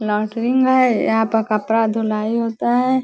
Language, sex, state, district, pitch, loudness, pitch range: Hindi, female, Bihar, Vaishali, 225 Hz, -18 LUFS, 220-245 Hz